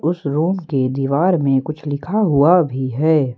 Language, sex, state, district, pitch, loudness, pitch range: Hindi, male, Jharkhand, Ranchi, 150 Hz, -17 LUFS, 135-170 Hz